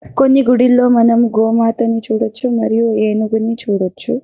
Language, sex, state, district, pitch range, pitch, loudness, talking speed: Telugu, female, Karnataka, Bellary, 220-245 Hz, 230 Hz, -14 LUFS, 130 wpm